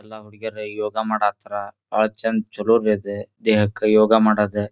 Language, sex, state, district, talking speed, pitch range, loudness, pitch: Kannada, male, Karnataka, Dharwad, 140 wpm, 105-110 Hz, -20 LUFS, 105 Hz